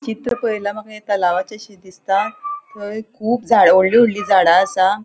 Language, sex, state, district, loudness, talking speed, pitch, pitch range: Konkani, female, Goa, North and South Goa, -16 LUFS, 165 wpm, 210 Hz, 195-230 Hz